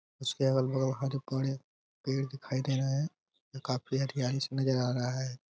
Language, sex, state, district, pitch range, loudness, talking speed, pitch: Hindi, male, Uttar Pradesh, Ghazipur, 130-135 Hz, -33 LUFS, 180 wpm, 135 Hz